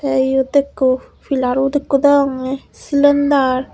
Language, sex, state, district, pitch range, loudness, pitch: Chakma, female, Tripura, Unakoti, 260-280 Hz, -16 LUFS, 275 Hz